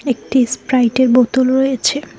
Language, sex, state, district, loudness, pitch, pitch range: Bengali, female, West Bengal, Cooch Behar, -14 LUFS, 260 Hz, 250-265 Hz